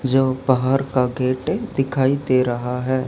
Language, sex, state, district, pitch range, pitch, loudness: Hindi, male, Haryana, Charkhi Dadri, 130-135 Hz, 130 Hz, -20 LUFS